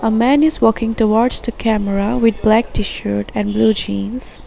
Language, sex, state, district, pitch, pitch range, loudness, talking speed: English, female, Assam, Sonitpur, 225 Hz, 210-235 Hz, -16 LUFS, 175 wpm